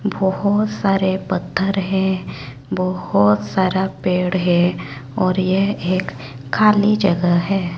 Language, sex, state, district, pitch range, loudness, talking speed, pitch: Hindi, male, Chhattisgarh, Raipur, 165-195 Hz, -18 LUFS, 110 wpm, 185 Hz